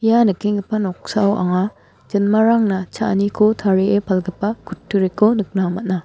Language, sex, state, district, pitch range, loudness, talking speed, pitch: Garo, female, Meghalaya, West Garo Hills, 190-215 Hz, -18 LUFS, 110 wpm, 200 Hz